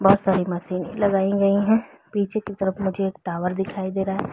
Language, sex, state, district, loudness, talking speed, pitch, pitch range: Hindi, female, Chhattisgarh, Bilaspur, -23 LUFS, 220 wpm, 195 Hz, 190-200 Hz